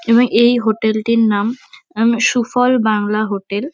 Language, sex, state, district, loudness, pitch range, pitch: Bengali, female, West Bengal, North 24 Parganas, -15 LUFS, 215-240 Hz, 230 Hz